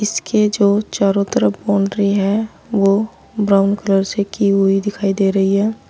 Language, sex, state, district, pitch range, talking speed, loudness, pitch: Hindi, female, Uttar Pradesh, Saharanpur, 195-210 Hz, 165 wpm, -16 LUFS, 200 Hz